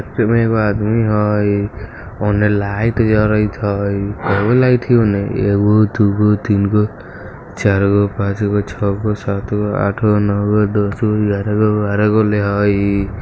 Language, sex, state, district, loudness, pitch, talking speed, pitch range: Maithili, male, Bihar, Muzaffarpur, -15 LUFS, 105 Hz, 170 wpm, 100-105 Hz